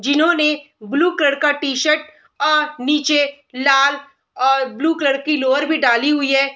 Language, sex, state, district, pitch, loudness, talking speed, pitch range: Hindi, female, Bihar, Sitamarhi, 285 Hz, -17 LUFS, 155 wpm, 275-300 Hz